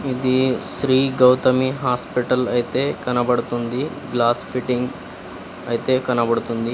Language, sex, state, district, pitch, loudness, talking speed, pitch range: Telugu, female, Telangana, Komaram Bheem, 125 Hz, -20 LUFS, 90 wpm, 120-130 Hz